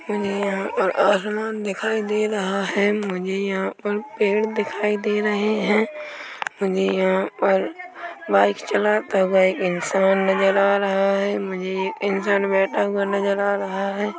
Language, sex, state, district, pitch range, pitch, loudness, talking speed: Hindi, female, Chhattisgarh, Korba, 195-210 Hz, 200 Hz, -21 LUFS, 150 wpm